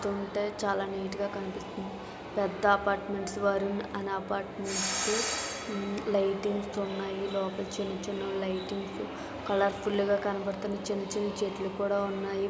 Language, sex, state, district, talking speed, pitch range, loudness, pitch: Telugu, female, Andhra Pradesh, Visakhapatnam, 115 wpm, 195-205 Hz, -32 LUFS, 200 Hz